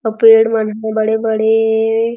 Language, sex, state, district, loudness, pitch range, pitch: Chhattisgarhi, female, Chhattisgarh, Jashpur, -13 LUFS, 220-225 Hz, 220 Hz